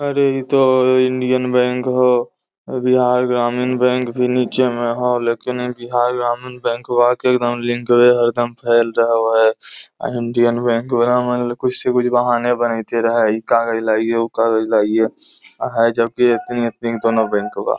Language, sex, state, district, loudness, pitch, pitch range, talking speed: Magahi, male, Bihar, Lakhisarai, -17 LUFS, 120 Hz, 115-125 Hz, 160 wpm